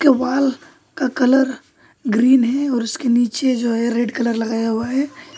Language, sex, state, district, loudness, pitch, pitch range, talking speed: Hindi, male, West Bengal, Alipurduar, -18 LUFS, 255 Hz, 235-270 Hz, 165 wpm